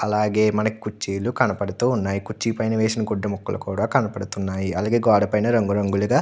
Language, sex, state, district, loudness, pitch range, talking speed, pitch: Telugu, male, Andhra Pradesh, Anantapur, -22 LUFS, 100-110 Hz, 175 wpm, 105 Hz